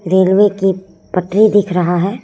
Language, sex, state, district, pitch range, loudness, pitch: Hindi, male, Chhattisgarh, Raipur, 180-205 Hz, -13 LUFS, 190 Hz